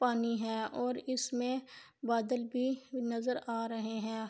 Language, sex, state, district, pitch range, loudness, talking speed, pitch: Urdu, female, Andhra Pradesh, Anantapur, 230-250 Hz, -36 LUFS, 140 wpm, 240 Hz